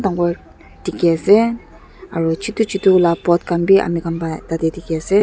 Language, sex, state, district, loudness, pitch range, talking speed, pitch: Nagamese, female, Nagaland, Dimapur, -17 LUFS, 165-195 Hz, 150 wpm, 175 Hz